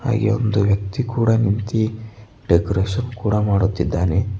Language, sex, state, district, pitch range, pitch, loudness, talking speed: Kannada, male, Karnataka, Bidar, 100-115 Hz, 105 Hz, -20 LUFS, 110 wpm